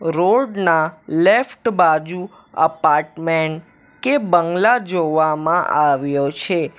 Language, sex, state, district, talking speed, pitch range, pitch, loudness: Gujarati, male, Gujarat, Valsad, 90 wpm, 155-190 Hz, 165 Hz, -17 LUFS